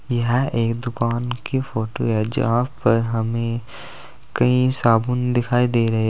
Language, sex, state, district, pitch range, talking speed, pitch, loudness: Hindi, male, Uttar Pradesh, Saharanpur, 115-125 Hz, 150 wpm, 120 Hz, -21 LUFS